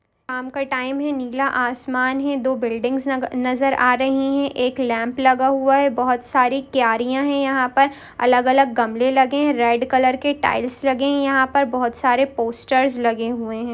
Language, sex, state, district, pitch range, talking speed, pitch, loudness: Hindi, female, Bihar, Sitamarhi, 250-275 Hz, 185 wpm, 260 Hz, -19 LUFS